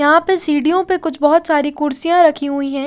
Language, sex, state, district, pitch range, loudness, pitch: Hindi, female, Haryana, Rohtak, 290-340 Hz, -15 LUFS, 305 Hz